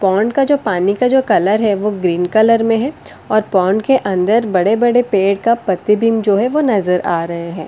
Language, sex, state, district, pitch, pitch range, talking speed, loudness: Hindi, female, Delhi, New Delhi, 210 Hz, 190-230 Hz, 220 wpm, -14 LUFS